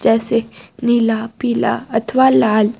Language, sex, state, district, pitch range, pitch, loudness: Hindi, female, Jharkhand, Garhwa, 225-240 Hz, 230 Hz, -16 LUFS